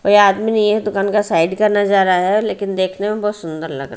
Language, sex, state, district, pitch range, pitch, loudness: Hindi, female, Haryana, Rohtak, 185-210 Hz, 200 Hz, -16 LUFS